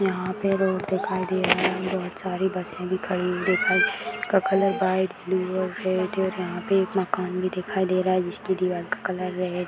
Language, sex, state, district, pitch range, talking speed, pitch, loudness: Hindi, female, Bihar, Madhepura, 185-190 Hz, 205 wpm, 185 Hz, -25 LUFS